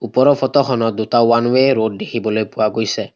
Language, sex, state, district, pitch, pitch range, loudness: Assamese, male, Assam, Kamrup Metropolitan, 115 Hz, 110-125 Hz, -16 LUFS